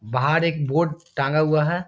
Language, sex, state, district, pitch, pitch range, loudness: Hindi, male, Bihar, Muzaffarpur, 155 Hz, 140-170 Hz, -21 LUFS